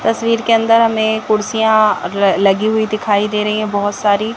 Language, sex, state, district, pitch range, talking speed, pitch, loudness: Hindi, female, Madhya Pradesh, Bhopal, 205-220 Hz, 190 wpm, 215 Hz, -14 LUFS